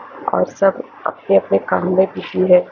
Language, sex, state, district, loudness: Hindi, female, Chandigarh, Chandigarh, -17 LUFS